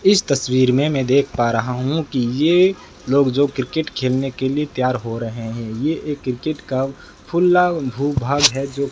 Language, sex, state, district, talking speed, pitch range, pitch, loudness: Hindi, male, Rajasthan, Bikaner, 200 wpm, 125-150 Hz, 135 Hz, -19 LUFS